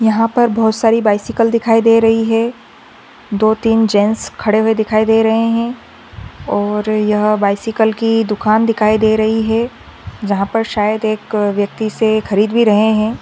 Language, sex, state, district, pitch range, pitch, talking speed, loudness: Hindi, female, Maharashtra, Aurangabad, 215-225 Hz, 220 Hz, 170 wpm, -14 LUFS